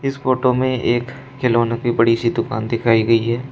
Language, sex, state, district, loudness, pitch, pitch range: Hindi, male, Uttar Pradesh, Shamli, -18 LUFS, 120 Hz, 115-130 Hz